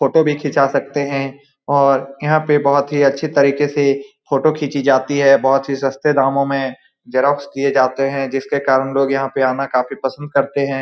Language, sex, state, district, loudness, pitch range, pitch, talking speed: Hindi, male, Bihar, Saran, -16 LUFS, 135-145 Hz, 140 Hz, 200 wpm